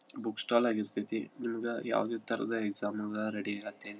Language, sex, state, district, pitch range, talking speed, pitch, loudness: Kannada, male, Karnataka, Belgaum, 105-115 Hz, 135 wpm, 110 Hz, -34 LUFS